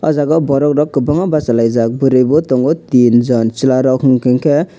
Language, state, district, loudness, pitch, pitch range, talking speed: Kokborok, Tripura, West Tripura, -12 LUFS, 135 Hz, 125-150 Hz, 200 wpm